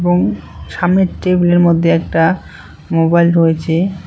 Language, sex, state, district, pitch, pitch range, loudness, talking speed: Bengali, male, West Bengal, Cooch Behar, 165 Hz, 160-175 Hz, -13 LUFS, 105 wpm